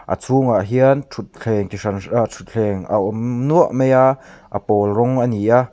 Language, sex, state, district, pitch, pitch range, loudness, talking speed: Mizo, male, Mizoram, Aizawl, 120 Hz, 105-130 Hz, -17 LUFS, 220 wpm